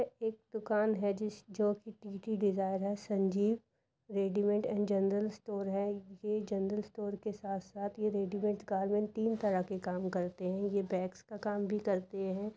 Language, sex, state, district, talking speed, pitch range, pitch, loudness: Hindi, female, Uttar Pradesh, Jyotiba Phule Nagar, 170 wpm, 195-210 Hz, 205 Hz, -36 LUFS